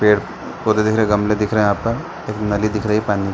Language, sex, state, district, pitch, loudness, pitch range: Hindi, male, Chhattisgarh, Bastar, 105 Hz, -18 LUFS, 105-110 Hz